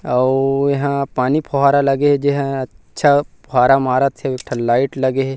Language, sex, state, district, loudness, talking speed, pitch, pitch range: Chhattisgarhi, male, Chhattisgarh, Rajnandgaon, -16 LUFS, 200 wpm, 135 Hz, 130-140 Hz